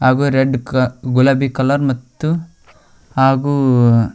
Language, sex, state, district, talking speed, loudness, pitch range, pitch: Kannada, male, Karnataka, Koppal, 100 wpm, -15 LUFS, 125-140 Hz, 130 Hz